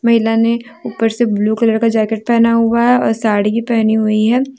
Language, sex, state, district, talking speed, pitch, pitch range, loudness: Hindi, female, Jharkhand, Deoghar, 220 wpm, 230 Hz, 220-235 Hz, -14 LUFS